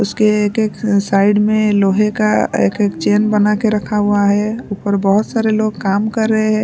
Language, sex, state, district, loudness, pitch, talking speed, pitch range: Hindi, female, Punjab, Pathankot, -15 LUFS, 210 Hz, 215 wpm, 205-215 Hz